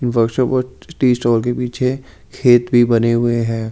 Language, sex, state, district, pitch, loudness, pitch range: Hindi, male, Delhi, New Delhi, 120 Hz, -16 LUFS, 115-125 Hz